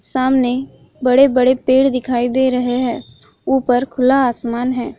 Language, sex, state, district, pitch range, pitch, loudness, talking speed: Hindi, female, Maharashtra, Chandrapur, 245-265 Hz, 255 Hz, -16 LUFS, 130 wpm